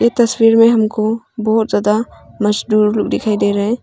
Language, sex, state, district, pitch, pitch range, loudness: Hindi, female, Arunachal Pradesh, Papum Pare, 220 Hz, 210-230 Hz, -14 LUFS